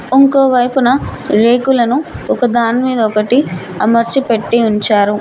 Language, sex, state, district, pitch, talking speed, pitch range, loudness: Telugu, female, Telangana, Mahabubabad, 235 Hz, 80 wpm, 215-260 Hz, -12 LUFS